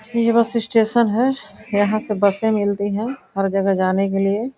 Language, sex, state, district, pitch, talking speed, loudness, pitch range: Hindi, female, Uttar Pradesh, Gorakhpur, 215 Hz, 185 wpm, -19 LUFS, 200-230 Hz